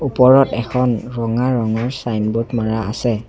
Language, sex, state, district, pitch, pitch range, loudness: Assamese, male, Assam, Sonitpur, 120 Hz, 110-125 Hz, -17 LUFS